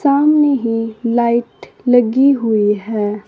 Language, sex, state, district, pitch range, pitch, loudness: Hindi, female, Uttar Pradesh, Saharanpur, 220-270 Hz, 235 Hz, -15 LUFS